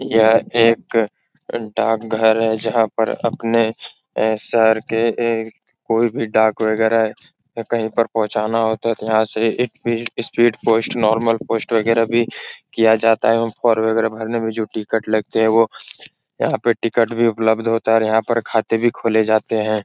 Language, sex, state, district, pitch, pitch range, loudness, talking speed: Hindi, male, Uttar Pradesh, Etah, 115 Hz, 110-115 Hz, -18 LUFS, 180 wpm